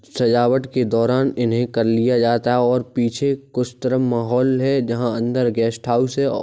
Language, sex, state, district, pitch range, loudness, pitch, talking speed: Hindi, male, Uttar Pradesh, Jalaun, 120-130 Hz, -19 LUFS, 125 Hz, 205 wpm